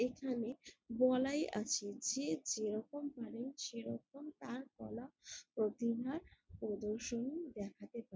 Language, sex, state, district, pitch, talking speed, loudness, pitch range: Bengali, female, West Bengal, Jalpaiguri, 240 Hz, 105 wpm, -41 LUFS, 215-270 Hz